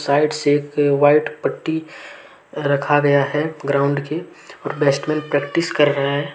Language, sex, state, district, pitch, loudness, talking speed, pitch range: Hindi, male, Jharkhand, Deoghar, 145 Hz, -19 LUFS, 150 wpm, 140-150 Hz